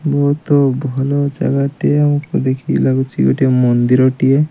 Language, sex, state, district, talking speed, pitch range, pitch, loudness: Odia, male, Odisha, Malkangiri, 95 wpm, 130-145 Hz, 135 Hz, -15 LUFS